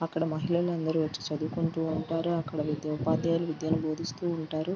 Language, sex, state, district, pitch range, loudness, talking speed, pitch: Telugu, female, Andhra Pradesh, Guntur, 155-165 Hz, -30 LUFS, 150 wpm, 160 Hz